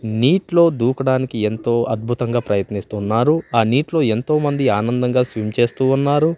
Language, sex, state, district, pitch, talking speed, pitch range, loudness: Telugu, male, Andhra Pradesh, Manyam, 120 Hz, 120 wpm, 110-140 Hz, -18 LUFS